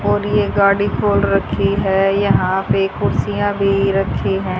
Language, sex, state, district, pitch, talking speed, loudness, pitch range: Hindi, female, Haryana, Jhajjar, 195 Hz, 155 wpm, -16 LUFS, 190-200 Hz